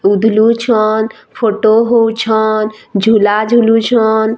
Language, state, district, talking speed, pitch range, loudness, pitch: Sambalpuri, Odisha, Sambalpur, 110 wpm, 215-225 Hz, -12 LUFS, 220 Hz